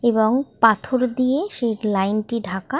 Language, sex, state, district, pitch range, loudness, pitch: Bengali, female, West Bengal, Malda, 215-255 Hz, -20 LUFS, 230 Hz